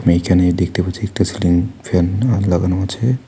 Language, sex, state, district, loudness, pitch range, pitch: Bengali, male, West Bengal, Alipurduar, -17 LUFS, 90-110 Hz, 90 Hz